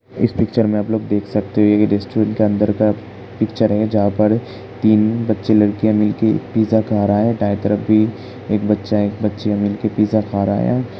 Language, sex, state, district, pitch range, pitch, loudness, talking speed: Hindi, male, Uttar Pradesh, Hamirpur, 105-110 Hz, 105 Hz, -17 LUFS, 200 wpm